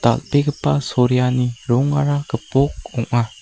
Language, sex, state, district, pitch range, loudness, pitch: Garo, male, Meghalaya, West Garo Hills, 120-145 Hz, -19 LUFS, 125 Hz